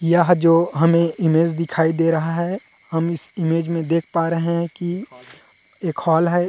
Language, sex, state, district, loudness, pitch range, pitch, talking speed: Chhattisgarhi, male, Chhattisgarh, Rajnandgaon, -19 LUFS, 165-170 Hz, 165 Hz, 185 wpm